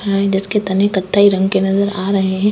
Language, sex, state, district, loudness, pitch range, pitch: Hindi, female, Uttar Pradesh, Etah, -15 LUFS, 195-200 Hz, 195 Hz